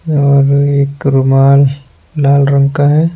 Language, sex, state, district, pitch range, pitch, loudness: Hindi, male, Punjab, Pathankot, 140-145 Hz, 140 Hz, -10 LUFS